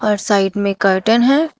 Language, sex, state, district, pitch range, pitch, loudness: Hindi, female, Uttar Pradesh, Shamli, 195-235 Hz, 205 Hz, -15 LUFS